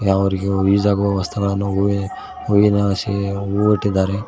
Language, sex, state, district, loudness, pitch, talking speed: Kannada, male, Karnataka, Koppal, -18 LUFS, 100 Hz, 110 wpm